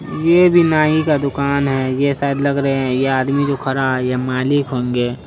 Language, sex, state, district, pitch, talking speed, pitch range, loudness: Hindi, female, Bihar, Araria, 140 Hz, 215 wpm, 130-140 Hz, -16 LUFS